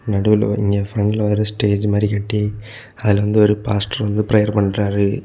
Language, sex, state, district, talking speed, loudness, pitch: Tamil, male, Tamil Nadu, Kanyakumari, 170 wpm, -17 LUFS, 105 Hz